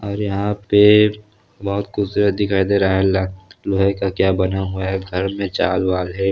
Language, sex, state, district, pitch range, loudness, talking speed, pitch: Chhattisgarhi, male, Chhattisgarh, Sarguja, 95-100 Hz, -18 LUFS, 200 wpm, 100 Hz